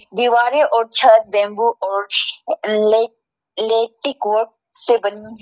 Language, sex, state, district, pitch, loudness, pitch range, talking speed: Hindi, female, Arunachal Pradesh, Lower Dibang Valley, 225 Hz, -17 LUFS, 215-240 Hz, 100 wpm